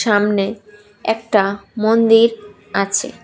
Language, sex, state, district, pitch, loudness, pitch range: Bengali, female, Tripura, West Tripura, 210 Hz, -17 LUFS, 205-225 Hz